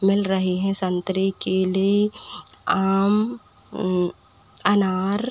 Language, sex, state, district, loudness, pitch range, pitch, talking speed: Hindi, female, Uttar Pradesh, Etah, -21 LUFS, 185-200 Hz, 195 Hz, 90 wpm